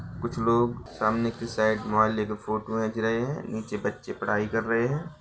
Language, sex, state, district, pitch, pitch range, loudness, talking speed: Hindi, male, Bihar, Bhagalpur, 110 Hz, 110-120 Hz, -27 LUFS, 195 wpm